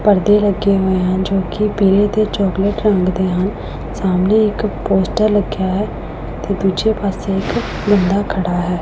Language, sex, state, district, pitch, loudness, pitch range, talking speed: Punjabi, female, Punjab, Pathankot, 195 Hz, -16 LUFS, 190-205 Hz, 155 wpm